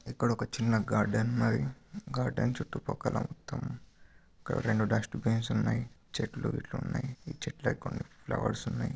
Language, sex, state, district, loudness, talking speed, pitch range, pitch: Telugu, male, Andhra Pradesh, Krishna, -33 LUFS, 135 wpm, 115-135 Hz, 125 Hz